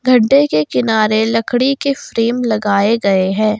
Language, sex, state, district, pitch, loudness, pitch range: Hindi, female, Jharkhand, Garhwa, 225 Hz, -14 LUFS, 210-250 Hz